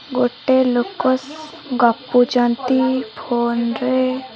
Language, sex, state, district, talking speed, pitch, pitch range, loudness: Odia, female, Odisha, Khordha, 70 wpm, 255 Hz, 240-260 Hz, -18 LUFS